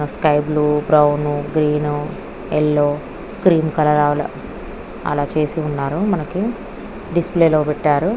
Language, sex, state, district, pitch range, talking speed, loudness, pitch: Telugu, female, Andhra Pradesh, Krishna, 145-165 Hz, 105 wpm, -18 LUFS, 150 Hz